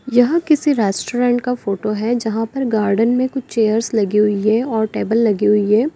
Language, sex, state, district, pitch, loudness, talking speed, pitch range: Hindi, female, Uttar Pradesh, Lalitpur, 225 Hz, -17 LUFS, 200 wpm, 210-245 Hz